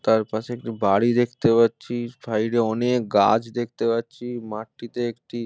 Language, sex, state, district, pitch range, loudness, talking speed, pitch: Bengali, male, West Bengal, Malda, 110-120 Hz, -23 LUFS, 145 wpm, 115 Hz